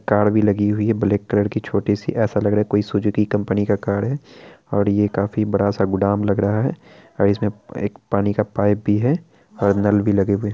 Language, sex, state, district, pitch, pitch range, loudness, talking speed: Hindi, male, Bihar, Araria, 105 Hz, 100-105 Hz, -20 LUFS, 220 wpm